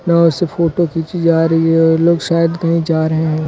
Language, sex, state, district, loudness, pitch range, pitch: Hindi, male, Uttar Pradesh, Lucknow, -14 LUFS, 160-170 Hz, 165 Hz